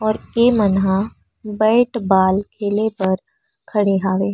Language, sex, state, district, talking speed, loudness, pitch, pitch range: Chhattisgarhi, female, Chhattisgarh, Rajnandgaon, 140 wpm, -18 LUFS, 210 Hz, 195-225 Hz